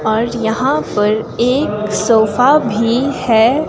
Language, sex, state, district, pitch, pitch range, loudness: Hindi, female, Himachal Pradesh, Shimla, 225 Hz, 220-255 Hz, -14 LUFS